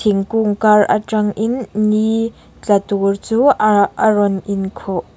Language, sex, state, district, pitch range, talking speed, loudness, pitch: Mizo, female, Mizoram, Aizawl, 200-220 Hz, 150 wpm, -16 LUFS, 210 Hz